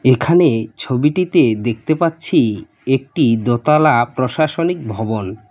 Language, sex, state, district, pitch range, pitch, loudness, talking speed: Bengali, male, West Bengal, Cooch Behar, 115-155 Hz, 130 Hz, -16 LUFS, 85 wpm